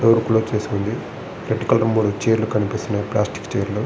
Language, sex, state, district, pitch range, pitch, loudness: Telugu, male, Andhra Pradesh, Srikakulam, 105-110 Hz, 105 Hz, -21 LUFS